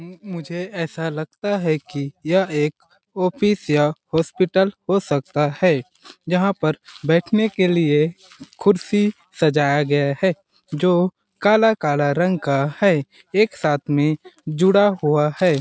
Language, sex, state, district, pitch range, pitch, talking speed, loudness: Hindi, male, Chhattisgarh, Balrampur, 150-190 Hz, 175 Hz, 125 wpm, -20 LUFS